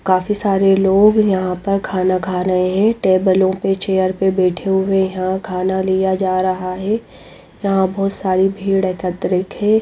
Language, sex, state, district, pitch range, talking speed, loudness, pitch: Hindi, female, Bihar, Patna, 185-195 Hz, 165 wpm, -16 LUFS, 190 Hz